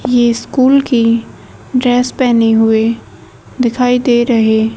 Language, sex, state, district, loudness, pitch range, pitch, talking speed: Hindi, female, Haryana, Jhajjar, -12 LUFS, 225-250 Hz, 240 Hz, 115 wpm